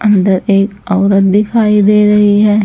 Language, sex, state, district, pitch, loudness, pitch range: Hindi, female, Chhattisgarh, Raipur, 205 Hz, -10 LUFS, 195-210 Hz